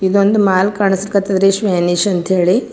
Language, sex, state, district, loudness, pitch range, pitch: Kannada, female, Karnataka, Gulbarga, -14 LUFS, 185-200 Hz, 195 Hz